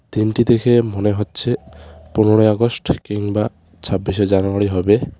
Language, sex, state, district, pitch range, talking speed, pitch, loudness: Bengali, male, West Bengal, Alipurduar, 95-110 Hz, 115 wpm, 105 Hz, -17 LUFS